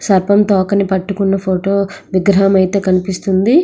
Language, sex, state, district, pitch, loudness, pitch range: Telugu, female, Andhra Pradesh, Srikakulam, 195 Hz, -14 LUFS, 190-200 Hz